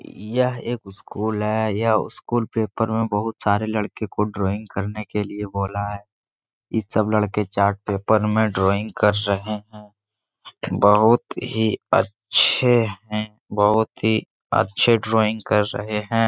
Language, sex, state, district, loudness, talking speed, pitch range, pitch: Hindi, male, Bihar, Jahanabad, -21 LUFS, 145 wpm, 105-110 Hz, 105 Hz